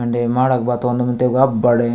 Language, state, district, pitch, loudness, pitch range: Gondi, Chhattisgarh, Sukma, 125 Hz, -16 LUFS, 120-125 Hz